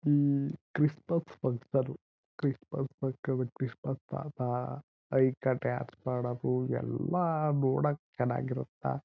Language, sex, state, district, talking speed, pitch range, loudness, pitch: Kannada, male, Karnataka, Chamarajanagar, 60 wpm, 125-145 Hz, -33 LUFS, 135 Hz